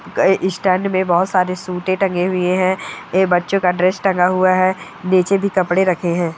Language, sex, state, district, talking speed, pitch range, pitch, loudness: Hindi, female, Bihar, Gaya, 200 wpm, 180-190 Hz, 185 Hz, -17 LUFS